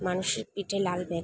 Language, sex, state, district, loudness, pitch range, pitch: Bengali, female, West Bengal, Paschim Medinipur, -30 LUFS, 180-200 Hz, 185 Hz